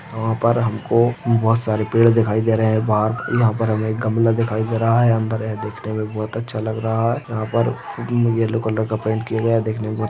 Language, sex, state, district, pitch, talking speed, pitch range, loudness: Hindi, male, Chhattisgarh, Balrampur, 110 Hz, 230 wpm, 110-115 Hz, -19 LUFS